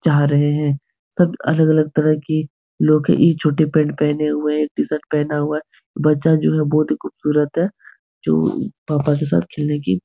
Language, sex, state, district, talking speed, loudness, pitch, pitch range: Hindi, male, Bihar, Jahanabad, 195 wpm, -18 LUFS, 150 Hz, 150-155 Hz